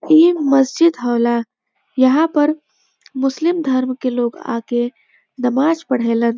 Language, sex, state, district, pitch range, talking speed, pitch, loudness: Bhojpuri, female, Uttar Pradesh, Varanasi, 240-315 Hz, 115 wpm, 260 Hz, -17 LUFS